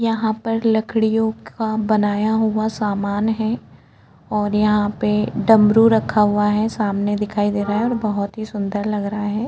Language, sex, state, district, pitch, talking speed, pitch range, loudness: Hindi, female, Maharashtra, Chandrapur, 215 Hz, 170 wpm, 205-220 Hz, -19 LUFS